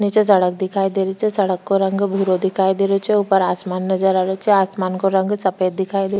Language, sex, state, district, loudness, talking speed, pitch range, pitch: Rajasthani, female, Rajasthan, Churu, -18 LUFS, 260 wpm, 190-200 Hz, 195 Hz